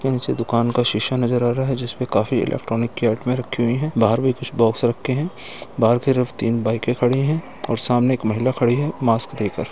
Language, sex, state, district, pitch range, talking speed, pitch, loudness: Hindi, male, Uttar Pradesh, Etah, 115-130 Hz, 240 wpm, 120 Hz, -20 LUFS